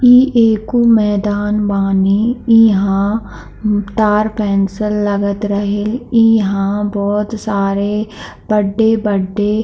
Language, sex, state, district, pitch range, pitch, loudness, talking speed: Hindi, female, Bihar, East Champaran, 200-220 Hz, 210 Hz, -14 LUFS, 95 wpm